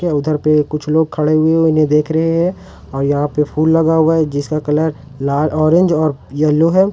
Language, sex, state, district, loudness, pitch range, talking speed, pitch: Hindi, male, Jharkhand, Ranchi, -15 LUFS, 150-160 Hz, 210 wpm, 155 Hz